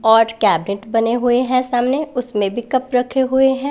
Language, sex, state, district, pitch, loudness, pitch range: Hindi, female, Punjab, Pathankot, 245 Hz, -17 LUFS, 225-260 Hz